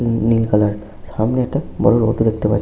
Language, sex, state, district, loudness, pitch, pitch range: Bengali, male, West Bengal, Malda, -17 LUFS, 110 Hz, 105-115 Hz